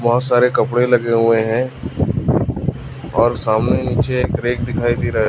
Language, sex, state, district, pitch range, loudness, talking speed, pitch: Hindi, male, Chhattisgarh, Raipur, 115-125 Hz, -17 LUFS, 170 wpm, 120 Hz